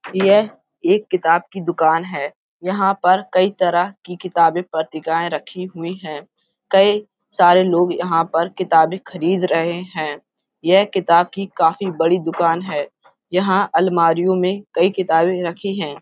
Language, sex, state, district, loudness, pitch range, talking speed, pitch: Hindi, female, Uttar Pradesh, Hamirpur, -18 LUFS, 165-190 Hz, 145 wpm, 180 Hz